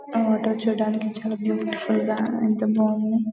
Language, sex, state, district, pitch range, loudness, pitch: Telugu, female, Telangana, Karimnagar, 215-225 Hz, -23 LUFS, 220 Hz